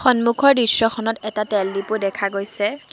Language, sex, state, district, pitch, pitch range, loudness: Assamese, female, Assam, Sonitpur, 215 Hz, 205-235 Hz, -19 LUFS